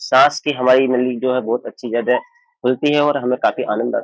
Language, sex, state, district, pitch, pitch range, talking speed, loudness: Hindi, male, Uttar Pradesh, Jyotiba Phule Nagar, 130 Hz, 125-150 Hz, 250 wpm, -17 LUFS